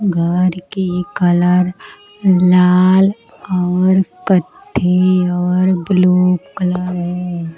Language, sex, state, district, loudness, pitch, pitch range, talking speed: Hindi, female, Bihar, Katihar, -14 LUFS, 180 Hz, 180-185 Hz, 80 wpm